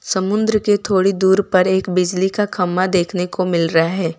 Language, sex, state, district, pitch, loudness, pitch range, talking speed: Hindi, female, Gujarat, Valsad, 190 Hz, -17 LUFS, 180-195 Hz, 200 wpm